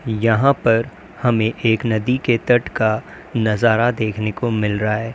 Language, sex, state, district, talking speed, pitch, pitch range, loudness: Hindi, male, Uttar Pradesh, Lalitpur, 165 wpm, 115 Hz, 110-120 Hz, -18 LUFS